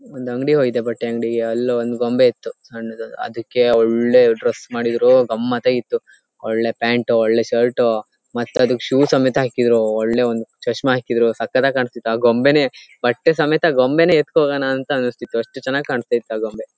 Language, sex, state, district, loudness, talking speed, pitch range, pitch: Kannada, male, Karnataka, Shimoga, -18 LUFS, 155 wpm, 115-130 Hz, 120 Hz